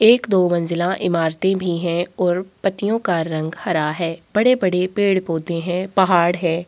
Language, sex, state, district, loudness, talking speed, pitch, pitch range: Hindi, female, Chhattisgarh, Korba, -19 LUFS, 155 wpm, 180 Hz, 170-190 Hz